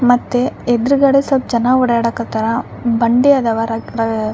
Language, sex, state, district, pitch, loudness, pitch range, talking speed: Kannada, female, Karnataka, Raichur, 240 Hz, -15 LUFS, 230-255 Hz, 150 wpm